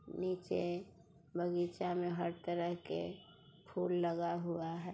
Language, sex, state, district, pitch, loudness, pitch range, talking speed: Hindi, female, Bihar, Sitamarhi, 175 Hz, -39 LUFS, 170-175 Hz, 120 wpm